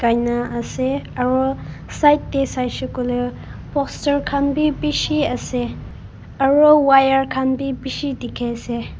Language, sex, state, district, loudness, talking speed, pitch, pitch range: Nagamese, female, Nagaland, Kohima, -19 LUFS, 125 wpm, 265 Hz, 240-280 Hz